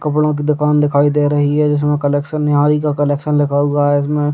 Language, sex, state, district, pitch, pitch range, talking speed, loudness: Hindi, male, Bihar, Muzaffarpur, 145 Hz, 145-150 Hz, 205 wpm, -15 LUFS